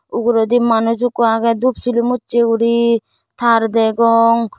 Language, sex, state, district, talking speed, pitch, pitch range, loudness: Chakma, female, Tripura, Dhalai, 130 wpm, 230 Hz, 230-240 Hz, -15 LUFS